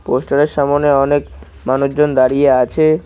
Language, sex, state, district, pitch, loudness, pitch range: Bengali, male, West Bengal, Cooch Behar, 140 Hz, -14 LUFS, 130-145 Hz